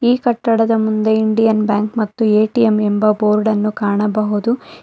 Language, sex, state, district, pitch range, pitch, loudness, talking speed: Kannada, female, Karnataka, Bangalore, 210-225 Hz, 215 Hz, -15 LUFS, 135 wpm